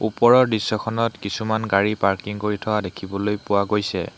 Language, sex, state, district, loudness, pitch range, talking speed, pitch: Assamese, male, Assam, Hailakandi, -21 LUFS, 100-110 Hz, 145 wpm, 105 Hz